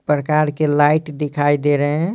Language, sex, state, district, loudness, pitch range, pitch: Hindi, male, Bihar, Patna, -17 LUFS, 145-155 Hz, 150 Hz